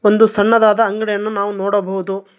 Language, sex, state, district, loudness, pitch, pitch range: Kannada, male, Karnataka, Bangalore, -15 LUFS, 205 Hz, 200-215 Hz